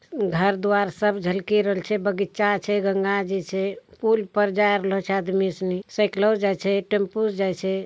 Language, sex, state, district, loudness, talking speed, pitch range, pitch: Angika, male, Bihar, Bhagalpur, -23 LUFS, 175 wpm, 195-205 Hz, 200 Hz